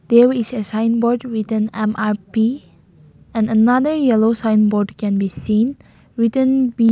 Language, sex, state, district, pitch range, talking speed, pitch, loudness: English, female, Nagaland, Kohima, 215-240 Hz, 155 wpm, 225 Hz, -17 LUFS